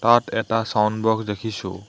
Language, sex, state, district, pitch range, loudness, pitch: Assamese, male, Assam, Hailakandi, 105-115 Hz, -22 LUFS, 110 Hz